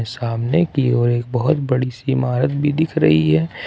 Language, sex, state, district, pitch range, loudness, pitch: Hindi, male, Jharkhand, Ranchi, 120-140 Hz, -18 LUFS, 125 Hz